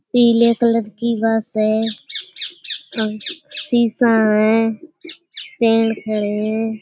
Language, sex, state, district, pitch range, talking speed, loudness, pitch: Hindi, female, Uttar Pradesh, Budaun, 220-240 Hz, 90 wpm, -18 LUFS, 225 Hz